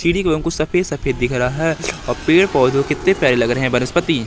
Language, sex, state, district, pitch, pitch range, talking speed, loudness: Hindi, male, Madhya Pradesh, Katni, 145 Hz, 125-165 Hz, 195 wpm, -17 LUFS